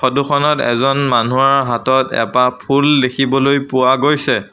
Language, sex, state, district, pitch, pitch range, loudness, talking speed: Assamese, male, Assam, Sonitpur, 135 Hz, 125-140 Hz, -14 LUFS, 130 wpm